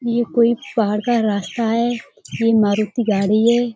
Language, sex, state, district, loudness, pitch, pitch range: Hindi, female, Uttar Pradesh, Budaun, -18 LUFS, 230 Hz, 210-235 Hz